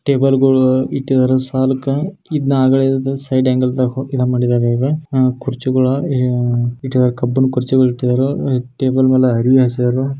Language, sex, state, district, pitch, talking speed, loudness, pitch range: Kannada, male, Karnataka, Shimoga, 130 Hz, 60 wpm, -15 LUFS, 125-135 Hz